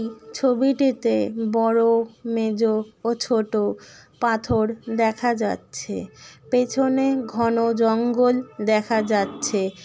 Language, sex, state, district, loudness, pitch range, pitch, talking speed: Bengali, female, West Bengal, North 24 Parganas, -22 LUFS, 220-240 Hz, 230 Hz, 80 wpm